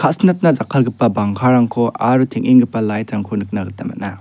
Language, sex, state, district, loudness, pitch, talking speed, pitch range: Garo, male, Meghalaya, South Garo Hills, -16 LUFS, 120 Hz, 130 wpm, 105-130 Hz